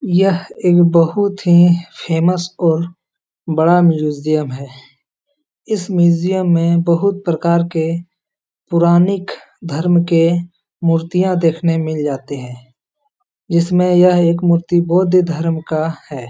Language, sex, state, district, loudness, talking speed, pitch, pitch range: Hindi, male, Bihar, Jahanabad, -15 LUFS, 115 wpm, 170 Hz, 165-180 Hz